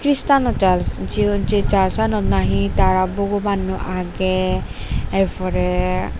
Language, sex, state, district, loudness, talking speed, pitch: Chakma, female, Tripura, Dhalai, -19 LUFS, 105 wpm, 180 Hz